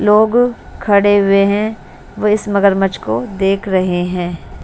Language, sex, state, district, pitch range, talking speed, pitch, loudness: Hindi, female, Bihar, West Champaran, 195-210 Hz, 140 wpm, 200 Hz, -14 LUFS